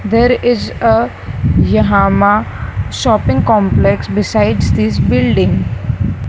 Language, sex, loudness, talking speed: English, female, -13 LUFS, 85 wpm